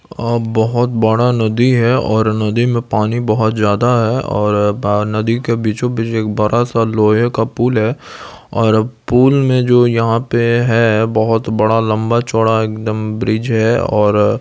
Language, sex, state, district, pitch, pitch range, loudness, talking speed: Hindi, male, Bihar, Supaul, 115 Hz, 110-120 Hz, -14 LUFS, 160 wpm